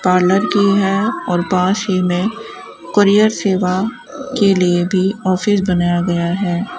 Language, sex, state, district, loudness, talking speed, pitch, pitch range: Hindi, female, Rajasthan, Bikaner, -15 LUFS, 140 wpm, 190 Hz, 180-205 Hz